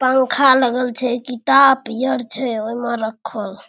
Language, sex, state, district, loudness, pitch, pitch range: Maithili, female, Bihar, Darbhanga, -17 LUFS, 245 Hz, 225-260 Hz